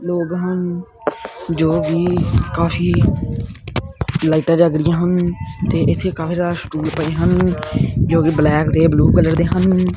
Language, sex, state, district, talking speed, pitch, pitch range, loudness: Punjabi, male, Punjab, Kapurthala, 140 wpm, 160 Hz, 125-175 Hz, -17 LUFS